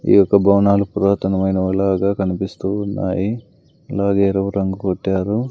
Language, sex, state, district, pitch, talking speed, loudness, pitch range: Telugu, male, Andhra Pradesh, Sri Satya Sai, 100 Hz, 120 wpm, -18 LUFS, 95-100 Hz